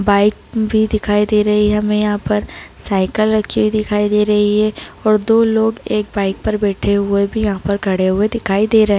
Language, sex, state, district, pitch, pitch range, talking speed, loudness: Hindi, female, Jharkhand, Jamtara, 210 Hz, 200-215 Hz, 215 wpm, -16 LUFS